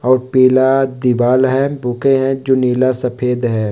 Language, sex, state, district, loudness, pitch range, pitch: Hindi, male, West Bengal, North 24 Parganas, -14 LUFS, 125-130 Hz, 130 Hz